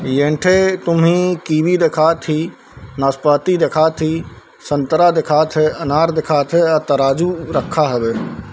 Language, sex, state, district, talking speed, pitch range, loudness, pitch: Chhattisgarhi, male, Chhattisgarh, Bilaspur, 135 wpm, 145-170 Hz, -15 LUFS, 155 Hz